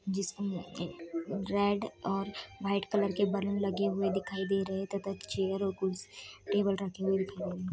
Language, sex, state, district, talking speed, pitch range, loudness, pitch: Hindi, female, Bihar, Saharsa, 195 wpm, 190-200 Hz, -33 LUFS, 195 Hz